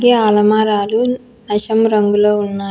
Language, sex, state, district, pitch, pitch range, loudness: Telugu, female, Telangana, Hyderabad, 215 Hz, 210-230 Hz, -14 LUFS